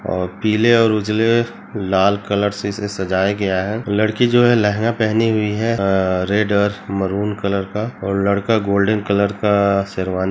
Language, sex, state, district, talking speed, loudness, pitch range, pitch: Hindi, male, Chhattisgarh, Bilaspur, 175 wpm, -18 LUFS, 100-110 Hz, 100 Hz